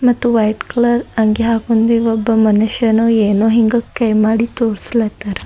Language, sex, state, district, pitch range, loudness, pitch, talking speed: Kannada, female, Karnataka, Bidar, 220-235 Hz, -14 LUFS, 225 Hz, 145 wpm